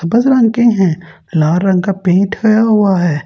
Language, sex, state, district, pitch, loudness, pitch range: Hindi, male, Delhi, New Delhi, 195 Hz, -12 LUFS, 175-220 Hz